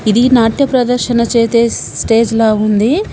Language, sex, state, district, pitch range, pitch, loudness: Telugu, female, Telangana, Komaram Bheem, 225-245 Hz, 235 Hz, -12 LUFS